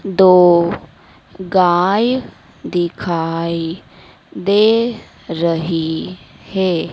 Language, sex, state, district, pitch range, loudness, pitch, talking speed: Hindi, female, Madhya Pradesh, Dhar, 165-195 Hz, -16 LUFS, 180 Hz, 50 wpm